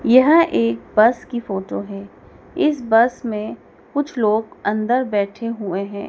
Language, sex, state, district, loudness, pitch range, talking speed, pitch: Hindi, female, Madhya Pradesh, Dhar, -19 LUFS, 195-245 Hz, 150 wpm, 215 Hz